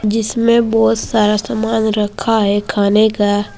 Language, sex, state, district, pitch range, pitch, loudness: Hindi, female, Uttar Pradesh, Saharanpur, 205-225 Hz, 215 Hz, -14 LUFS